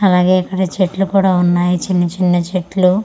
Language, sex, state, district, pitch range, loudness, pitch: Telugu, female, Andhra Pradesh, Manyam, 180-190 Hz, -15 LUFS, 185 Hz